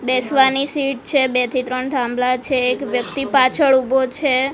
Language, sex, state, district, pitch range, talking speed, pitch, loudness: Gujarati, female, Gujarat, Gandhinagar, 255-275 Hz, 170 wpm, 260 Hz, -17 LUFS